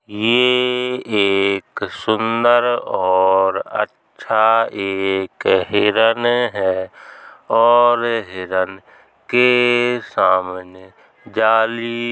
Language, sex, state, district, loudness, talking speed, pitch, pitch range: Hindi, male, Uttar Pradesh, Hamirpur, -17 LUFS, 70 wpm, 110 Hz, 95-120 Hz